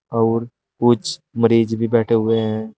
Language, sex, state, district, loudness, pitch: Hindi, male, Uttar Pradesh, Shamli, -18 LUFS, 115 Hz